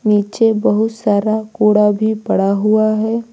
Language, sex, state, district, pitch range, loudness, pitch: Hindi, female, Uttar Pradesh, Lucknow, 210-220 Hz, -15 LUFS, 215 Hz